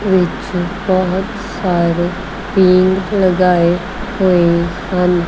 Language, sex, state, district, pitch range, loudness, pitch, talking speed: Punjabi, female, Punjab, Kapurthala, 175-190 Hz, -15 LUFS, 185 Hz, 90 wpm